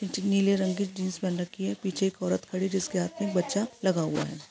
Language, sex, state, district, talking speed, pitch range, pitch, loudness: Hindi, female, Jharkhand, Sahebganj, 255 wpm, 180-200 Hz, 190 Hz, -29 LUFS